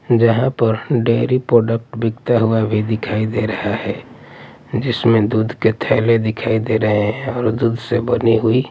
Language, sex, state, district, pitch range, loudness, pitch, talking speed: Hindi, male, Delhi, New Delhi, 110-120 Hz, -17 LUFS, 115 Hz, 165 wpm